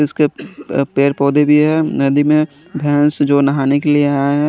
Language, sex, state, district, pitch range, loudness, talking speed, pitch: Hindi, male, Chandigarh, Chandigarh, 140-150 Hz, -14 LUFS, 175 wpm, 145 Hz